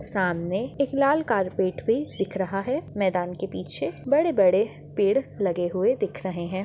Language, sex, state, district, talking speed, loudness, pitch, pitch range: Hindi, female, Chhattisgarh, Bastar, 160 wpm, -25 LUFS, 195 Hz, 185-265 Hz